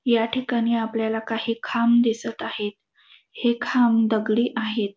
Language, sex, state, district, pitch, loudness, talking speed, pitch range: Marathi, female, Maharashtra, Dhule, 230 Hz, -23 LUFS, 135 wpm, 220-235 Hz